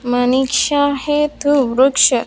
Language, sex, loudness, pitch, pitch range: Hindi, female, -15 LUFS, 265 Hz, 250-285 Hz